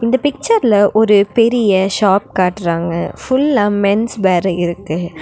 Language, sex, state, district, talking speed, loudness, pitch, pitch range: Tamil, female, Tamil Nadu, Nilgiris, 115 wpm, -14 LUFS, 200 Hz, 180-230 Hz